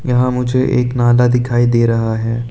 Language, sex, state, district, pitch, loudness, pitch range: Hindi, male, Arunachal Pradesh, Lower Dibang Valley, 120 Hz, -14 LUFS, 120-125 Hz